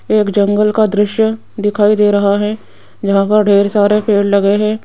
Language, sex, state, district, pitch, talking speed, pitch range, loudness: Hindi, female, Rajasthan, Jaipur, 210 Hz, 185 wpm, 200-215 Hz, -13 LUFS